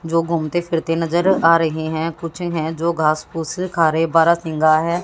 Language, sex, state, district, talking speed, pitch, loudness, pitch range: Hindi, female, Haryana, Jhajjar, 180 wpm, 165 Hz, -18 LUFS, 160-170 Hz